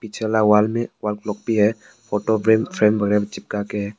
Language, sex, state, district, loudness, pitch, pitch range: Hindi, male, Arunachal Pradesh, Papum Pare, -20 LUFS, 105 Hz, 105-110 Hz